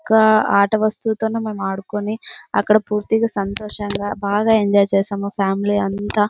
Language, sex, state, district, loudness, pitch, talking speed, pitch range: Telugu, female, Andhra Pradesh, Anantapur, -19 LUFS, 210 Hz, 145 wpm, 200-215 Hz